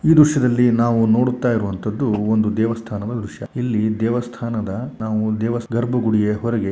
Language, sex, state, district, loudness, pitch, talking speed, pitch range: Kannada, male, Karnataka, Shimoga, -19 LUFS, 115 Hz, 135 wpm, 110-120 Hz